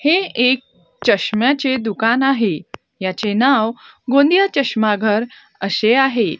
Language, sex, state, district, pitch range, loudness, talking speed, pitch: Marathi, female, Maharashtra, Gondia, 215-270 Hz, -16 LUFS, 105 wpm, 240 Hz